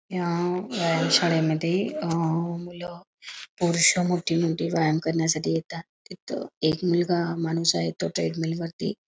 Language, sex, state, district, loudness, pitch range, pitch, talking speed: Marathi, female, Karnataka, Belgaum, -25 LUFS, 165-175 Hz, 170 Hz, 125 wpm